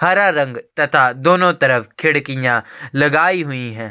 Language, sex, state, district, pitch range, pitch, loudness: Hindi, male, Chhattisgarh, Sukma, 125-170 Hz, 140 Hz, -16 LUFS